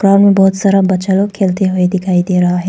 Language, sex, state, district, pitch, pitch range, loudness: Hindi, female, Arunachal Pradesh, Papum Pare, 190 Hz, 185-195 Hz, -12 LUFS